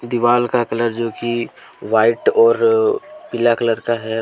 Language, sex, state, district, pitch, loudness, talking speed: Hindi, male, Jharkhand, Deoghar, 120 Hz, -17 LUFS, 155 wpm